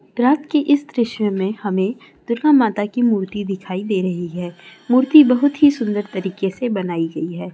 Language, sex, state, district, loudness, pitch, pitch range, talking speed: Hindi, female, Bihar, Purnia, -18 LUFS, 205 Hz, 190-250 Hz, 185 wpm